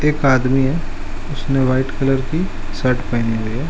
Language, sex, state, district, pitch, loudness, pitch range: Hindi, male, Uttar Pradesh, Ghazipur, 130 Hz, -19 LUFS, 120-140 Hz